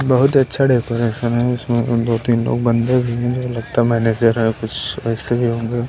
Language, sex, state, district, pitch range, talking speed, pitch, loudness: Hindi, male, Maharashtra, Washim, 115-125 Hz, 185 wpm, 120 Hz, -17 LUFS